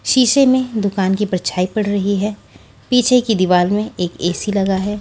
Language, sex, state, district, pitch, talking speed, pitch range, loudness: Hindi, female, Maharashtra, Washim, 205 Hz, 190 wpm, 185-220 Hz, -16 LUFS